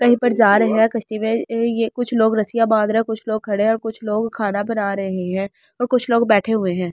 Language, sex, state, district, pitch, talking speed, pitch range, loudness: Hindi, male, Delhi, New Delhi, 220 Hz, 270 wpm, 210-230 Hz, -19 LUFS